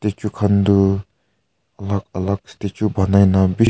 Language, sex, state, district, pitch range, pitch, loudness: Nagamese, male, Nagaland, Kohima, 95-105 Hz, 100 Hz, -18 LUFS